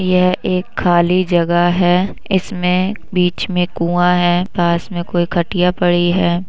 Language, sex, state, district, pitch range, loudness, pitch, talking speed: Hindi, female, Uttar Pradesh, Budaun, 175-185 Hz, -15 LUFS, 180 Hz, 150 wpm